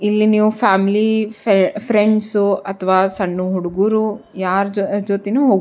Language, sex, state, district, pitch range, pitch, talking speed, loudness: Kannada, female, Karnataka, Bijapur, 195-215 Hz, 205 Hz, 140 wpm, -16 LUFS